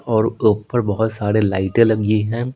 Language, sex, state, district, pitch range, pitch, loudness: Hindi, male, Bihar, Patna, 105-115 Hz, 110 Hz, -18 LUFS